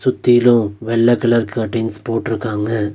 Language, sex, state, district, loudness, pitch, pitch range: Tamil, male, Tamil Nadu, Nilgiris, -16 LUFS, 115 Hz, 110-120 Hz